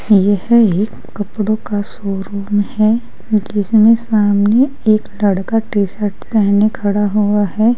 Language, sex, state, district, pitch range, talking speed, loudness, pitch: Hindi, female, Uttar Pradesh, Saharanpur, 205-220 Hz, 115 wpm, -15 LUFS, 210 Hz